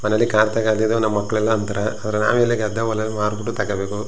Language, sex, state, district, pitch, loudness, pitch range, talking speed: Kannada, male, Karnataka, Chamarajanagar, 110 Hz, -20 LUFS, 105-110 Hz, 205 wpm